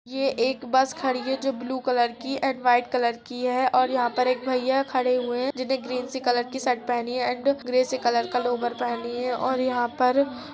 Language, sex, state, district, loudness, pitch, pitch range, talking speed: Hindi, female, Uttar Pradesh, Jalaun, -25 LUFS, 255 Hz, 245-260 Hz, 240 wpm